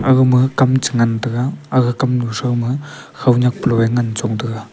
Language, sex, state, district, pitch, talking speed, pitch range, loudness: Wancho, male, Arunachal Pradesh, Longding, 125 Hz, 205 wpm, 115-130 Hz, -16 LUFS